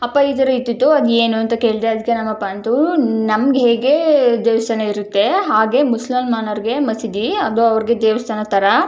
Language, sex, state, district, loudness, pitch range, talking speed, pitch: Kannada, female, Karnataka, Chamarajanagar, -16 LUFS, 220-260 Hz, 155 wpm, 230 Hz